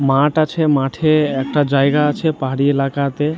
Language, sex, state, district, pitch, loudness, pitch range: Bengali, male, West Bengal, Jhargram, 145 Hz, -16 LUFS, 135-155 Hz